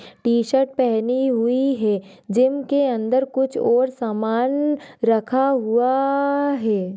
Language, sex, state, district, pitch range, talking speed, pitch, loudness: Hindi, female, Bihar, Jahanabad, 230-270 Hz, 110 wpm, 255 Hz, -20 LUFS